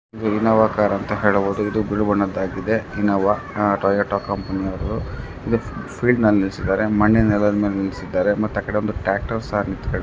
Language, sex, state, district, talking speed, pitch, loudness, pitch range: Kannada, male, Karnataka, Dharwad, 160 wpm, 105 Hz, -20 LUFS, 100-105 Hz